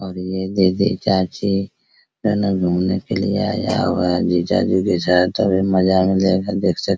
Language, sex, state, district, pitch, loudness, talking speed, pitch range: Hindi, male, Bihar, Araria, 95 Hz, -18 LUFS, 200 wpm, 90-100 Hz